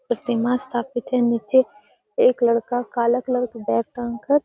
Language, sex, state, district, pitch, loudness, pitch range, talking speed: Magahi, female, Bihar, Gaya, 245 Hz, -22 LUFS, 235-255 Hz, 175 wpm